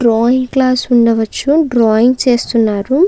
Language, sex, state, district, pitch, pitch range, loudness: Telugu, female, Andhra Pradesh, Chittoor, 245 Hz, 230-260 Hz, -12 LUFS